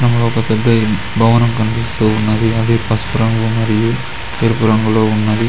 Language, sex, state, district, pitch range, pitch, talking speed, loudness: Telugu, male, Telangana, Mahabubabad, 110-115 Hz, 115 Hz, 140 wpm, -14 LUFS